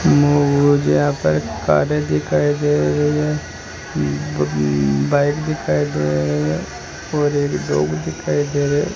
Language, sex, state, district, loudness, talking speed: Hindi, male, Rajasthan, Jaipur, -18 LUFS, 145 wpm